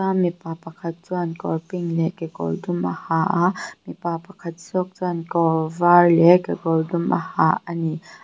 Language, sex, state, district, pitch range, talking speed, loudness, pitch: Mizo, female, Mizoram, Aizawl, 165-180 Hz, 165 wpm, -21 LUFS, 170 Hz